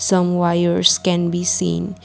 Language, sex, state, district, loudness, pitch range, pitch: English, female, Assam, Kamrup Metropolitan, -17 LUFS, 170-180 Hz, 175 Hz